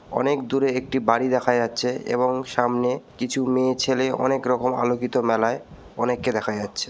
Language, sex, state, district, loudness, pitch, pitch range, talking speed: Bengali, male, West Bengal, Purulia, -23 LUFS, 125 Hz, 125-130 Hz, 155 wpm